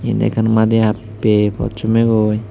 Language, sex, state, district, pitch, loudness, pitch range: Chakma, male, Tripura, Dhalai, 110 Hz, -16 LUFS, 105-110 Hz